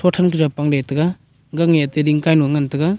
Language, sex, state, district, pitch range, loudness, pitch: Wancho, male, Arunachal Pradesh, Longding, 145-165 Hz, -17 LUFS, 150 Hz